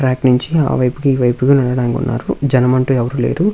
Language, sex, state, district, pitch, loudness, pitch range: Telugu, male, Andhra Pradesh, Visakhapatnam, 130 Hz, -15 LUFS, 125-140 Hz